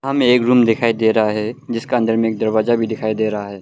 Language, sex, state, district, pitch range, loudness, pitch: Hindi, male, Arunachal Pradesh, Longding, 110-120 Hz, -17 LUFS, 115 Hz